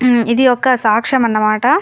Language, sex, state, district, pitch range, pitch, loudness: Telugu, female, Andhra Pradesh, Anantapur, 220-255 Hz, 245 Hz, -13 LUFS